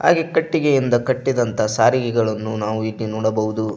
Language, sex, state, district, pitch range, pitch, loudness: Kannada, male, Karnataka, Koppal, 110-130 Hz, 110 Hz, -19 LUFS